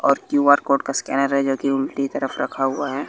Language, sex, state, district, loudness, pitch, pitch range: Hindi, male, Bihar, West Champaran, -20 LUFS, 140 Hz, 135-140 Hz